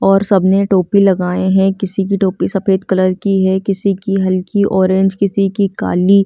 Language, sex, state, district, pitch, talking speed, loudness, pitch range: Hindi, female, Delhi, New Delhi, 195 Hz, 190 wpm, -14 LUFS, 190-195 Hz